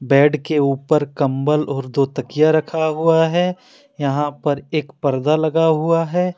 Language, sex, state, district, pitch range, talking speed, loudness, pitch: Hindi, male, Jharkhand, Deoghar, 140-165 Hz, 160 wpm, -18 LUFS, 150 Hz